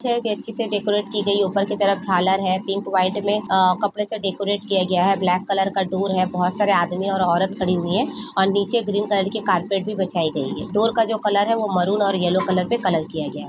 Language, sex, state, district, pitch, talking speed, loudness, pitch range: Hindi, female, Jharkhand, Jamtara, 195 Hz, 245 wpm, -21 LUFS, 185-205 Hz